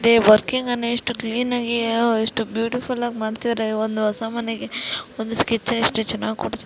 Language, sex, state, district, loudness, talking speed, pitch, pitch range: Kannada, female, Karnataka, Shimoga, -21 LUFS, 145 wpm, 230 Hz, 220-240 Hz